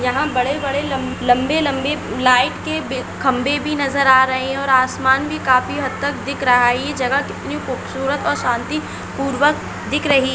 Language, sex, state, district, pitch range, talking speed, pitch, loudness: Hindi, female, Maharashtra, Nagpur, 255-285 Hz, 190 wpm, 270 Hz, -18 LUFS